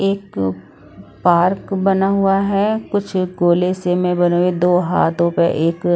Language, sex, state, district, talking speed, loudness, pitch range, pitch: Hindi, female, Odisha, Sambalpur, 150 wpm, -17 LUFS, 175-195 Hz, 180 Hz